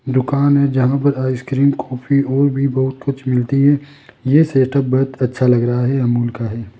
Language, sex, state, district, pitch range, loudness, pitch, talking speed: Hindi, male, Rajasthan, Jaipur, 125-140 Hz, -16 LUFS, 130 Hz, 205 wpm